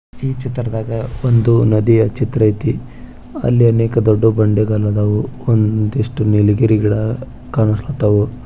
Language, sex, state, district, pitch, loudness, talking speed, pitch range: Kannada, male, Karnataka, Bijapur, 110 Hz, -15 LUFS, 105 wpm, 105-120 Hz